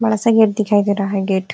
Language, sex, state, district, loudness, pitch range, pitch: Hindi, female, Uttar Pradesh, Ghazipur, -16 LUFS, 195-220 Hz, 205 Hz